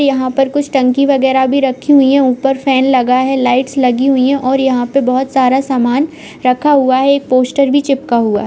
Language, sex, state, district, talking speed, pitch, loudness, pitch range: Hindi, female, Uttar Pradesh, Budaun, 220 wpm, 265 Hz, -12 LUFS, 255-275 Hz